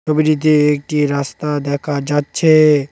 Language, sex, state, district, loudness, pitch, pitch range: Bengali, male, West Bengal, Cooch Behar, -15 LUFS, 150 Hz, 145-155 Hz